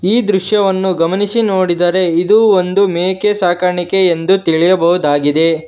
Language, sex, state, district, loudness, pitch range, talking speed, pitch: Kannada, male, Karnataka, Bangalore, -13 LUFS, 175-195 Hz, 105 wpm, 185 Hz